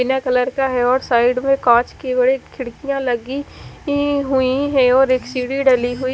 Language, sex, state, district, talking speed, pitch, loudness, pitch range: Hindi, female, Haryana, Charkhi Dadri, 205 wpm, 260 Hz, -17 LUFS, 250-270 Hz